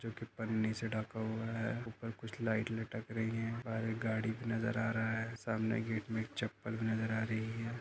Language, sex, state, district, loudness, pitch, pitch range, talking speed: Hindi, male, Maharashtra, Dhule, -38 LUFS, 115 Hz, 110-115 Hz, 225 wpm